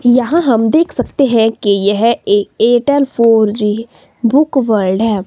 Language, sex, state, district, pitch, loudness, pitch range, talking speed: Hindi, female, Himachal Pradesh, Shimla, 230 Hz, -12 LUFS, 220-275 Hz, 160 wpm